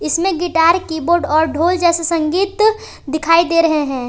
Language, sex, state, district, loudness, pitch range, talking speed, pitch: Hindi, female, Jharkhand, Palamu, -15 LUFS, 315-350 Hz, 160 wpm, 335 Hz